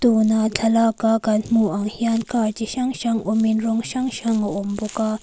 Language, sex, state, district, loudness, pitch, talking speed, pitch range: Mizo, female, Mizoram, Aizawl, -21 LUFS, 225 Hz, 230 wpm, 215-230 Hz